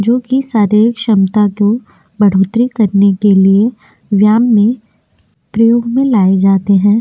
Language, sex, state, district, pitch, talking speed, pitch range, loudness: Hindi, female, Chhattisgarh, Korba, 210 Hz, 135 wpm, 200-230 Hz, -11 LUFS